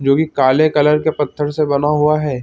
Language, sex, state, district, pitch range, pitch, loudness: Hindi, male, Chhattisgarh, Bilaspur, 140-150 Hz, 150 Hz, -15 LUFS